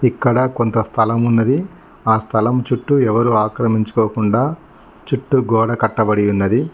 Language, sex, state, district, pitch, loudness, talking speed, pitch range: Telugu, male, Telangana, Mahabubabad, 115 Hz, -16 LUFS, 115 wpm, 110-130 Hz